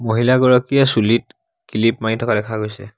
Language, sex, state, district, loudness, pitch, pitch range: Assamese, male, Assam, Sonitpur, -17 LUFS, 115 Hz, 110-130 Hz